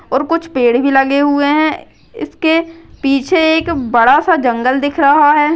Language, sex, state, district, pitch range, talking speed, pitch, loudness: Hindi, female, Uttarakhand, Uttarkashi, 270-325 Hz, 170 wpm, 290 Hz, -12 LUFS